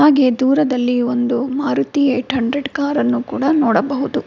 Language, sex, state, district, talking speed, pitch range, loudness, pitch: Kannada, female, Karnataka, Bangalore, 125 wpm, 245-285 Hz, -17 LUFS, 265 Hz